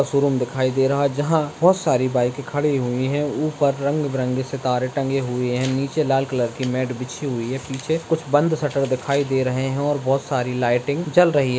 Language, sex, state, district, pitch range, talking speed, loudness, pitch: Hindi, male, Bihar, Madhepura, 130-145 Hz, 215 wpm, -21 LUFS, 135 Hz